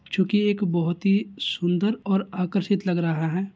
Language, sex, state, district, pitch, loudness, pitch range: Hindi, male, Bihar, Gaya, 190 Hz, -24 LUFS, 175-200 Hz